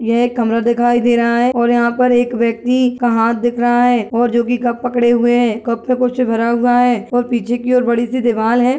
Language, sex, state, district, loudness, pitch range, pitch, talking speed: Hindi, female, Uttarakhand, Tehri Garhwal, -14 LUFS, 235-245 Hz, 240 Hz, 260 wpm